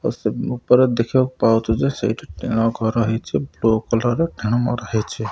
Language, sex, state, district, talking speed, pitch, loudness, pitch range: Odia, male, Odisha, Malkangiri, 155 wpm, 115 Hz, -20 LUFS, 110-120 Hz